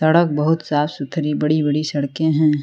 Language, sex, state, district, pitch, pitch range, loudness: Hindi, female, Uttar Pradesh, Lucknow, 150 Hz, 150-160 Hz, -19 LUFS